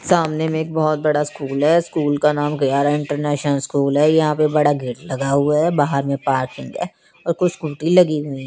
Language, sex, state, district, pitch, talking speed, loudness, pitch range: Hindi, female, Chandigarh, Chandigarh, 150 Hz, 215 wpm, -18 LUFS, 140-155 Hz